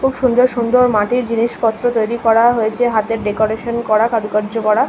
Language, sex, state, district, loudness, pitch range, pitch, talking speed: Bengali, female, West Bengal, North 24 Parganas, -15 LUFS, 220-240 Hz, 230 Hz, 170 wpm